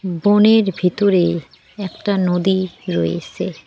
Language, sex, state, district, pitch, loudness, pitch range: Bengali, female, West Bengal, Cooch Behar, 185 Hz, -17 LUFS, 175-200 Hz